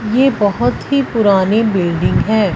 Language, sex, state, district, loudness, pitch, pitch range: Hindi, female, Punjab, Fazilka, -14 LUFS, 215 Hz, 195-235 Hz